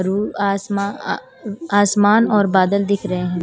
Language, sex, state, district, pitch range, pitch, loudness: Hindi, female, Haryana, Charkhi Dadri, 190-205 Hz, 200 Hz, -18 LUFS